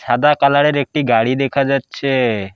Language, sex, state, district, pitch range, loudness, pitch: Bengali, male, West Bengal, Alipurduar, 125-140 Hz, -15 LUFS, 135 Hz